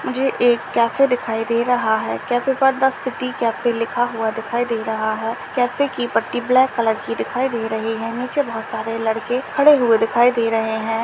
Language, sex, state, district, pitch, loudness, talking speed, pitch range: Hindi, male, Rajasthan, Churu, 235 Hz, -19 LUFS, 205 wpm, 225-250 Hz